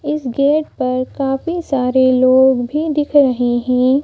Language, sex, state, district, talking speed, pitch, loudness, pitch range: Hindi, female, Madhya Pradesh, Bhopal, 150 wpm, 265 Hz, -15 LUFS, 255-295 Hz